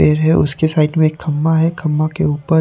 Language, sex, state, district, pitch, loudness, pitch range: Hindi, male, Haryana, Charkhi Dadri, 155 Hz, -15 LUFS, 150-160 Hz